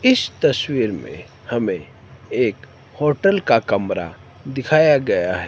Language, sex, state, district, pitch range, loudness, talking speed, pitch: Hindi, male, Himachal Pradesh, Shimla, 130-185 Hz, -19 LUFS, 120 wpm, 150 Hz